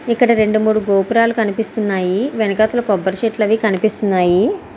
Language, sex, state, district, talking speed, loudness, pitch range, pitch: Telugu, female, Andhra Pradesh, Srikakulam, 125 wpm, -16 LUFS, 200-225 Hz, 215 Hz